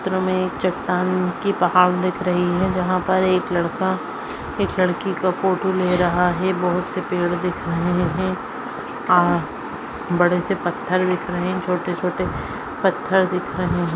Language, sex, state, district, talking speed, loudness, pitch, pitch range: Hindi, female, Maharashtra, Nagpur, 170 wpm, -21 LUFS, 180 Hz, 180-185 Hz